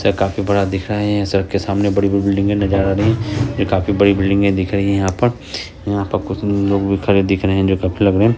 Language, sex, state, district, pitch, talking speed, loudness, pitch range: Hindi, female, Bihar, Purnia, 100 Hz, 280 wpm, -17 LUFS, 95-100 Hz